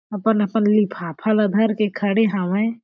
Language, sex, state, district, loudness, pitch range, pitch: Chhattisgarhi, female, Chhattisgarh, Jashpur, -20 LUFS, 200-220 Hz, 210 Hz